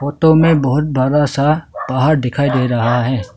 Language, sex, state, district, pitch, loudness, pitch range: Hindi, male, Arunachal Pradesh, Longding, 140 Hz, -14 LUFS, 125-150 Hz